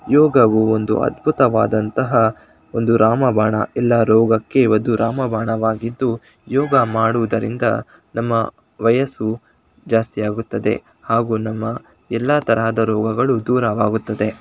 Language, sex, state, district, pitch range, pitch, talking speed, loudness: Kannada, male, Karnataka, Shimoga, 110-120 Hz, 115 Hz, 120 wpm, -18 LUFS